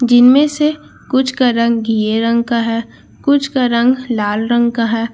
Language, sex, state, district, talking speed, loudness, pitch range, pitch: Hindi, female, Bihar, Katihar, 185 wpm, -14 LUFS, 230-260 Hz, 235 Hz